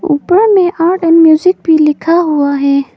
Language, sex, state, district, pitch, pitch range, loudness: Hindi, female, Arunachal Pradesh, Papum Pare, 330 Hz, 300-355 Hz, -10 LUFS